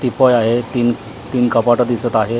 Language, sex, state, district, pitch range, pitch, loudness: Marathi, male, Maharashtra, Mumbai Suburban, 115-125 Hz, 120 Hz, -15 LUFS